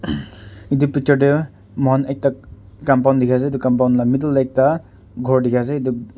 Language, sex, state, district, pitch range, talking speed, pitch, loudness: Nagamese, male, Nagaland, Kohima, 120-140 Hz, 185 wpm, 130 Hz, -18 LUFS